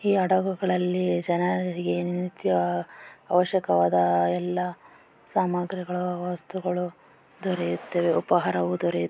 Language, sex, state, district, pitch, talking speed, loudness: Kannada, female, Karnataka, Bellary, 175 Hz, 65 wpm, -26 LUFS